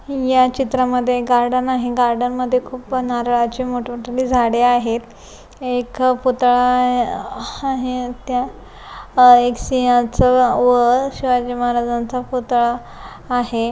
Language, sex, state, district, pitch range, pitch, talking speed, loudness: Marathi, female, Maharashtra, Pune, 245-255 Hz, 250 Hz, 95 wpm, -17 LUFS